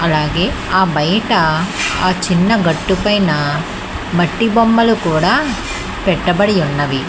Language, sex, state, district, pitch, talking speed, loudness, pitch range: Telugu, female, Telangana, Hyderabad, 180 Hz, 100 wpm, -14 LUFS, 160-205 Hz